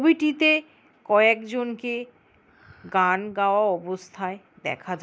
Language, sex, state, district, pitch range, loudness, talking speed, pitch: Bengali, female, West Bengal, North 24 Parganas, 185-245 Hz, -23 LUFS, 85 wpm, 210 Hz